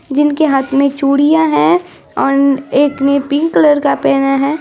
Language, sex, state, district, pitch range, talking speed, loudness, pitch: Hindi, female, Bihar, Araria, 275-295 Hz, 170 wpm, -12 LUFS, 280 Hz